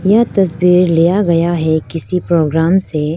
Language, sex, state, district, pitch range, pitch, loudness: Hindi, female, Arunachal Pradesh, Lower Dibang Valley, 160-185 Hz, 170 Hz, -13 LUFS